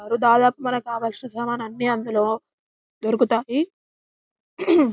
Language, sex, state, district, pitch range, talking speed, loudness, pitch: Telugu, female, Telangana, Karimnagar, 225-250 Hz, 85 wpm, -22 LUFS, 240 Hz